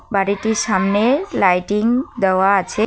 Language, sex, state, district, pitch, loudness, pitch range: Bengali, female, West Bengal, Cooch Behar, 205 Hz, -17 LUFS, 195-220 Hz